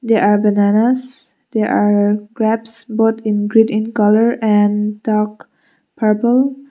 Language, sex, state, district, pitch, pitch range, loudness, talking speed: English, female, Mizoram, Aizawl, 220 Hz, 210-230 Hz, -15 LUFS, 125 wpm